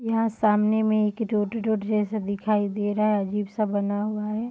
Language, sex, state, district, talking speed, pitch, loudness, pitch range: Hindi, female, Bihar, Sitamarhi, 200 wpm, 210 Hz, -25 LUFS, 205-220 Hz